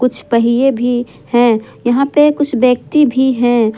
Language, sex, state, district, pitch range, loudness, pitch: Hindi, female, Jharkhand, Ranchi, 240-270 Hz, -13 LUFS, 245 Hz